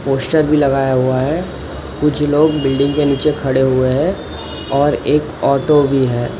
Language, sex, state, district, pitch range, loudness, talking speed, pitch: Hindi, male, Maharashtra, Mumbai Suburban, 130-150 Hz, -15 LUFS, 170 wpm, 140 Hz